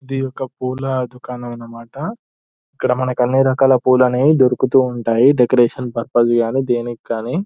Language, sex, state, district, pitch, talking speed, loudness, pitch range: Telugu, male, Telangana, Nalgonda, 125 Hz, 135 wpm, -17 LUFS, 120-135 Hz